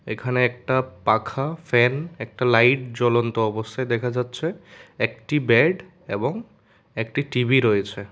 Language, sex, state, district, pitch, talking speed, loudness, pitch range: Bengali, male, Tripura, West Tripura, 125 Hz, 120 wpm, -22 LUFS, 110-130 Hz